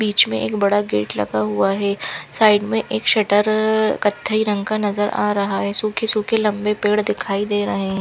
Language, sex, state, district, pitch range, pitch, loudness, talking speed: Hindi, female, Punjab, Fazilka, 195-215 Hz, 205 Hz, -18 LUFS, 195 wpm